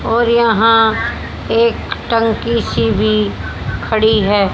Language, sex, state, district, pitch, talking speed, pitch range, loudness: Hindi, female, Haryana, Jhajjar, 225 Hz, 105 wpm, 215-230 Hz, -14 LUFS